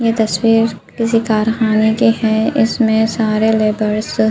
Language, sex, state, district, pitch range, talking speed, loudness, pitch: Hindi, female, Uttar Pradesh, Budaun, 215-225 Hz, 140 wpm, -14 LUFS, 220 Hz